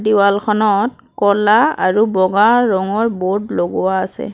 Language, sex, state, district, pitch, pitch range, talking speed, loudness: Assamese, female, Assam, Kamrup Metropolitan, 205 Hz, 190-215 Hz, 110 wpm, -15 LUFS